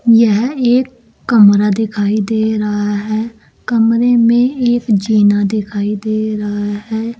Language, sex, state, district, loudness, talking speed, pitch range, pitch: Hindi, female, Uttar Pradesh, Saharanpur, -14 LUFS, 125 wpm, 205-230 Hz, 215 Hz